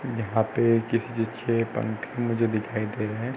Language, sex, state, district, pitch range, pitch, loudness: Hindi, male, Uttar Pradesh, Hamirpur, 110-115 Hz, 115 Hz, -26 LUFS